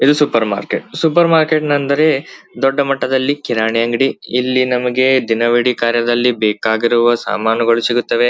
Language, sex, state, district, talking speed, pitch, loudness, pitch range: Kannada, male, Karnataka, Belgaum, 125 wpm, 120 Hz, -15 LUFS, 115-140 Hz